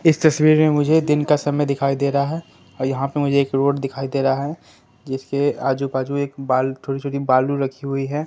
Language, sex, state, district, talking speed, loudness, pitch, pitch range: Hindi, male, Bihar, Katihar, 230 wpm, -20 LUFS, 140 Hz, 135-145 Hz